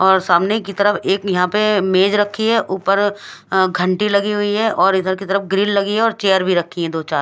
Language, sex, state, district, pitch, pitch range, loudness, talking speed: Hindi, female, Odisha, Khordha, 195 Hz, 185-205 Hz, -16 LUFS, 250 wpm